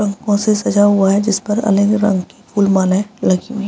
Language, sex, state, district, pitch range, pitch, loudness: Hindi, female, Bihar, Araria, 195-210 Hz, 205 Hz, -15 LUFS